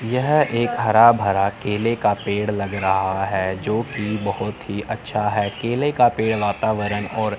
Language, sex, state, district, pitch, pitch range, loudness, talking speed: Hindi, male, Chandigarh, Chandigarh, 105 Hz, 100-115 Hz, -20 LUFS, 170 wpm